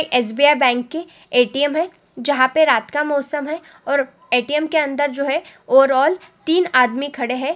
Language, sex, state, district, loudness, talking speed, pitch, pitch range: Hindi, female, Chhattisgarh, Sukma, -18 LUFS, 190 wpm, 290 Hz, 255-315 Hz